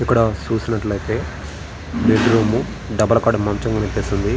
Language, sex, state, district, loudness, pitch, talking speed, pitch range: Telugu, male, Andhra Pradesh, Srikakulam, -19 LUFS, 110 Hz, 110 wpm, 100-115 Hz